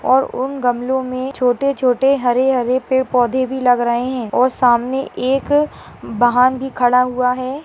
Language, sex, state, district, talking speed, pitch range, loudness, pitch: Hindi, female, Chhattisgarh, Rajnandgaon, 165 wpm, 245-265 Hz, -16 LUFS, 255 Hz